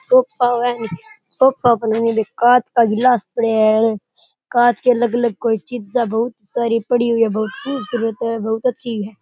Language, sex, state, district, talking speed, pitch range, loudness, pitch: Rajasthani, male, Rajasthan, Churu, 175 wpm, 225-245 Hz, -17 LUFS, 235 Hz